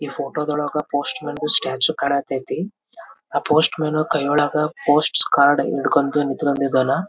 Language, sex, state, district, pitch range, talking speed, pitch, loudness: Kannada, male, Karnataka, Belgaum, 140-155 Hz, 135 wpm, 145 Hz, -19 LUFS